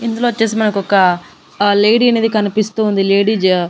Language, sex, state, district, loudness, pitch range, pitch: Telugu, female, Andhra Pradesh, Annamaya, -14 LUFS, 195-225 Hz, 210 Hz